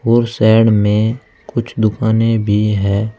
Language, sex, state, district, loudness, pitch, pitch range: Hindi, male, Uttar Pradesh, Saharanpur, -14 LUFS, 110 Hz, 105-115 Hz